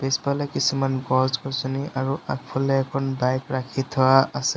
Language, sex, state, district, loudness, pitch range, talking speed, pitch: Assamese, male, Assam, Sonitpur, -23 LUFS, 130-135 Hz, 145 wpm, 135 Hz